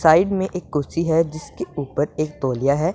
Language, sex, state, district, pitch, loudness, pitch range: Hindi, female, Punjab, Pathankot, 155 Hz, -22 LUFS, 145-165 Hz